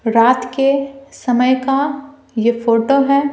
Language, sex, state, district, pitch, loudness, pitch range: Hindi, female, Bihar, Patna, 270 Hz, -15 LUFS, 245-275 Hz